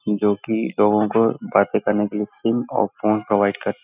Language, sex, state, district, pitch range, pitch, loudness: Hindi, male, Uttar Pradesh, Hamirpur, 105-110 Hz, 105 Hz, -20 LUFS